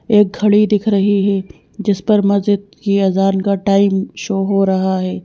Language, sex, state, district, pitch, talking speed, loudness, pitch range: Hindi, female, Madhya Pradesh, Bhopal, 200 Hz, 170 wpm, -15 LUFS, 195-205 Hz